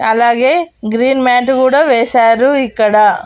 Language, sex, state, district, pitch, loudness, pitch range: Telugu, female, Andhra Pradesh, Annamaya, 245 Hz, -11 LUFS, 230-265 Hz